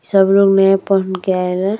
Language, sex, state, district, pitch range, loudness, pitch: Bhojpuri, female, Uttar Pradesh, Deoria, 185-195 Hz, -14 LUFS, 195 Hz